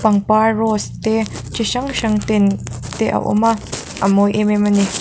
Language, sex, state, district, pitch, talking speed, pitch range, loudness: Mizo, female, Mizoram, Aizawl, 210 Hz, 190 wpm, 195-220 Hz, -17 LUFS